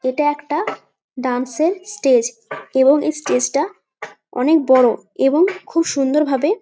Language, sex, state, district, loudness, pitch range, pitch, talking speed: Bengali, female, West Bengal, Jalpaiguri, -17 LUFS, 260-325 Hz, 290 Hz, 125 wpm